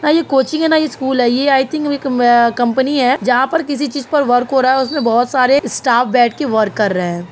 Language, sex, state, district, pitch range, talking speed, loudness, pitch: Hindi, female, Uttar Pradesh, Budaun, 240-285 Hz, 270 wpm, -14 LUFS, 260 Hz